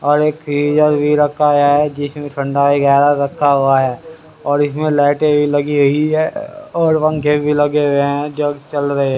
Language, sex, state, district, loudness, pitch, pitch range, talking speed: Hindi, male, Haryana, Rohtak, -15 LUFS, 145 Hz, 145-150 Hz, 185 wpm